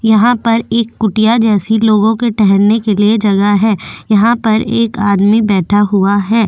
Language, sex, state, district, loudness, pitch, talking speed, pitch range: Hindi, female, Goa, North and South Goa, -11 LUFS, 220 Hz, 185 wpm, 205-225 Hz